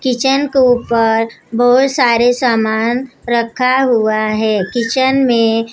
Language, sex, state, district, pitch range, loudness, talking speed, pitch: Hindi, female, Maharashtra, Mumbai Suburban, 225-255 Hz, -13 LUFS, 115 wpm, 240 Hz